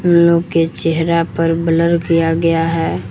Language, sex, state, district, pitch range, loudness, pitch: Hindi, male, Jharkhand, Palamu, 165-170 Hz, -15 LUFS, 165 Hz